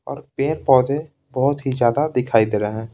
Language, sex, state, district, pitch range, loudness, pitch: Hindi, male, Bihar, Patna, 115-140 Hz, -19 LUFS, 130 Hz